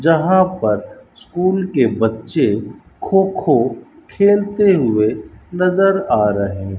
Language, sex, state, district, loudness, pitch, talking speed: Hindi, male, Rajasthan, Bikaner, -16 LUFS, 180 Hz, 115 wpm